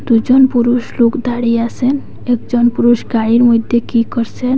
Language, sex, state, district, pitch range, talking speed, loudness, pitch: Bengali, female, Assam, Hailakandi, 235-245 Hz, 145 wpm, -13 LUFS, 240 Hz